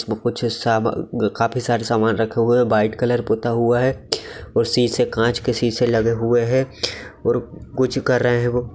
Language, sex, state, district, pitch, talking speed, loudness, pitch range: Magahi, male, Bihar, Gaya, 120 Hz, 200 wpm, -20 LUFS, 115-125 Hz